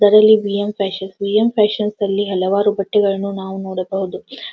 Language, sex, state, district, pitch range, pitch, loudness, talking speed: Kannada, female, Karnataka, Dharwad, 195-210 Hz, 200 Hz, -17 LUFS, 120 wpm